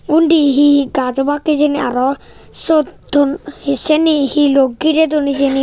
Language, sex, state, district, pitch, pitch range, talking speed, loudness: Chakma, male, Tripura, Unakoti, 290 Hz, 275-305 Hz, 160 wpm, -14 LUFS